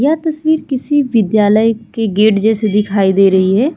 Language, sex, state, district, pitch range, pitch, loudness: Hindi, female, Uttar Pradesh, Muzaffarnagar, 205-275 Hz, 220 Hz, -13 LUFS